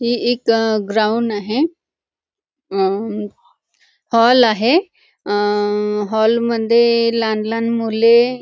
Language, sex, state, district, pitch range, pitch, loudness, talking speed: Marathi, female, Maharashtra, Nagpur, 215-235 Hz, 230 Hz, -16 LUFS, 100 wpm